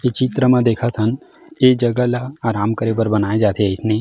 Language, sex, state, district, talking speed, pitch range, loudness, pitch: Chhattisgarhi, male, Chhattisgarh, Jashpur, 210 wpm, 110-125 Hz, -17 LUFS, 115 Hz